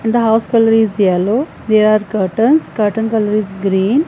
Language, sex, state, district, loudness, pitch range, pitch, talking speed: English, female, Punjab, Fazilka, -14 LUFS, 205-225 Hz, 220 Hz, 190 wpm